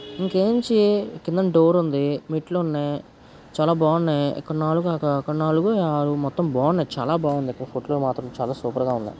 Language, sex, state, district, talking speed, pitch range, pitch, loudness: Telugu, male, Andhra Pradesh, Guntur, 165 wpm, 140-170 Hz, 155 Hz, -22 LUFS